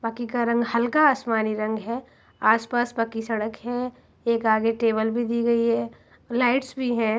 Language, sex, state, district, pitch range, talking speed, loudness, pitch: Hindi, female, Uttar Pradesh, Varanasi, 220-240 Hz, 190 wpm, -24 LUFS, 235 Hz